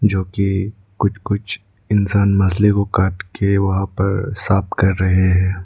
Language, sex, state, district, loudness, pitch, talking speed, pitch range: Hindi, male, Arunachal Pradesh, Lower Dibang Valley, -18 LUFS, 100 Hz, 140 wpm, 95-100 Hz